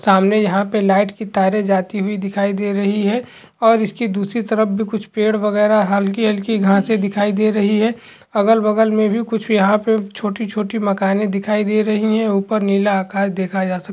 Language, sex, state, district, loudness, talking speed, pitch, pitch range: Hindi, male, Bihar, Samastipur, -17 LUFS, 185 wpm, 210 Hz, 200-220 Hz